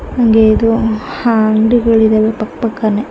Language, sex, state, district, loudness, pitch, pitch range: Kannada, female, Karnataka, Mysore, -12 LUFS, 220 Hz, 215-230 Hz